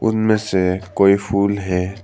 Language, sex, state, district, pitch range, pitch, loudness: Hindi, male, Arunachal Pradesh, Papum Pare, 95-100 Hz, 100 Hz, -17 LUFS